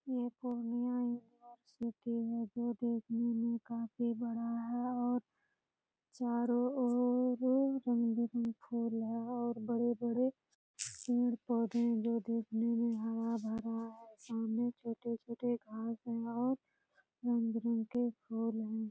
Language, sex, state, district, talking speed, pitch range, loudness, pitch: Hindi, female, Bihar, Purnia, 115 wpm, 230-245 Hz, -37 LUFS, 235 Hz